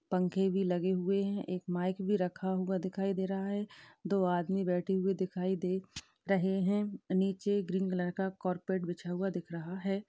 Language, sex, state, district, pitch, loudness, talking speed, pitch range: Hindi, female, Uttar Pradesh, Hamirpur, 190 Hz, -34 LUFS, 190 wpm, 180-195 Hz